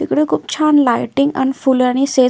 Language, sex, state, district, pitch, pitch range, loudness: Marathi, female, Maharashtra, Solapur, 265 Hz, 250-280 Hz, -15 LUFS